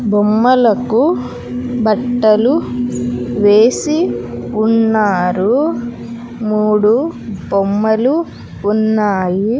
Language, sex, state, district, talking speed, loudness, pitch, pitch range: Telugu, female, Andhra Pradesh, Sri Satya Sai, 45 wpm, -14 LUFS, 215 Hz, 190-240 Hz